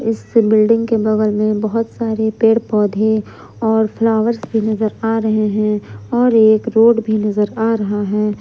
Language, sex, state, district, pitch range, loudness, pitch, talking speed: Hindi, female, Jharkhand, Ranchi, 215-225 Hz, -15 LUFS, 220 Hz, 170 wpm